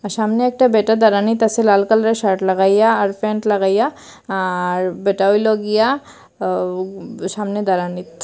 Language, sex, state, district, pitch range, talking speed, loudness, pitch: Bengali, female, Assam, Hailakandi, 190-220 Hz, 160 wpm, -17 LUFS, 205 Hz